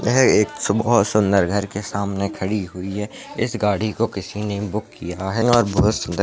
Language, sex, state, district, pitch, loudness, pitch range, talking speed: Hindi, male, Maharashtra, Solapur, 100 Hz, -20 LUFS, 100-110 Hz, 185 wpm